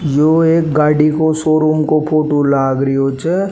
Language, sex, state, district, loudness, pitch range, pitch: Rajasthani, male, Rajasthan, Nagaur, -13 LUFS, 145-155 Hz, 155 Hz